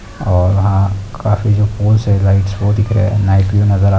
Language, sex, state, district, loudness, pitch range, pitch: Hindi, male, Uttarakhand, Tehri Garhwal, -14 LUFS, 95-105 Hz, 100 Hz